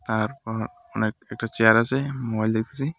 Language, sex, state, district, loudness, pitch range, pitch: Bengali, male, West Bengal, Alipurduar, -24 LUFS, 110-135 Hz, 110 Hz